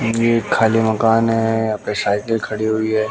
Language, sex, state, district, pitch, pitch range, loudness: Hindi, male, Bihar, West Champaran, 110 Hz, 110-115 Hz, -17 LUFS